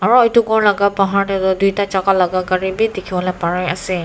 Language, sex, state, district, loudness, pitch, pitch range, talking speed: Nagamese, female, Nagaland, Kohima, -16 LUFS, 190 Hz, 185-200 Hz, 235 wpm